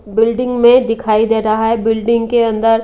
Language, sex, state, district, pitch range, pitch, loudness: Hindi, female, Haryana, Rohtak, 225-235 Hz, 225 Hz, -13 LUFS